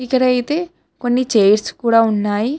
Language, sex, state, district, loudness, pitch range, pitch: Telugu, female, Telangana, Hyderabad, -16 LUFS, 215-255 Hz, 245 Hz